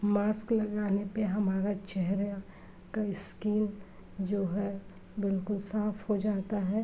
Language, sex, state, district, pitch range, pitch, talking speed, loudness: Hindi, female, Uttar Pradesh, Varanasi, 195-210 Hz, 205 Hz, 125 wpm, -32 LUFS